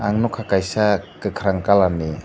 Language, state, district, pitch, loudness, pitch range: Kokborok, Tripura, Dhalai, 100 Hz, -20 LUFS, 95-105 Hz